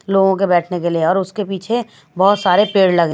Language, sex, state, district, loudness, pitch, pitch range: Hindi, female, Maharashtra, Washim, -16 LUFS, 190 Hz, 175-195 Hz